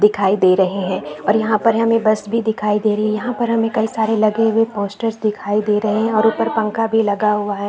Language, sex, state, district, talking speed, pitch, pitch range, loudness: Hindi, female, Jharkhand, Jamtara, 265 wpm, 215 Hz, 210-225 Hz, -17 LUFS